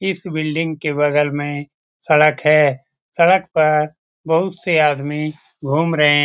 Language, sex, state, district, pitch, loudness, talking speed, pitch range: Hindi, male, Bihar, Jamui, 155 Hz, -17 LUFS, 145 wpm, 145-165 Hz